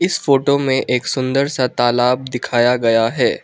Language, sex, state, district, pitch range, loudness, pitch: Hindi, male, Arunachal Pradesh, Lower Dibang Valley, 120-135 Hz, -16 LUFS, 125 Hz